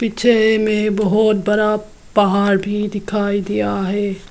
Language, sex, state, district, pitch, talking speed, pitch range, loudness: Hindi, female, Arunachal Pradesh, Lower Dibang Valley, 210 Hz, 125 wpm, 200-215 Hz, -17 LUFS